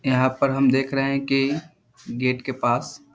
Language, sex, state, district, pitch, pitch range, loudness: Hindi, male, Bihar, Jahanabad, 135 Hz, 130-135 Hz, -22 LUFS